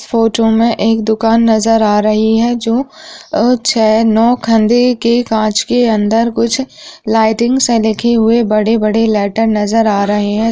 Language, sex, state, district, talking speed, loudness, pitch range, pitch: Hindi, female, Bihar, Madhepura, 165 wpm, -12 LUFS, 220-235 Hz, 225 Hz